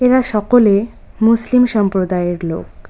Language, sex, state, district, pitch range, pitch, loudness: Bengali, female, West Bengal, Cooch Behar, 190-245 Hz, 210 Hz, -15 LUFS